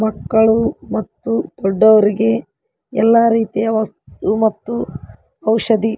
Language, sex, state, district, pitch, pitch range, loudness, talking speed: Kannada, female, Karnataka, Koppal, 220 Hz, 220-230 Hz, -16 LUFS, 90 wpm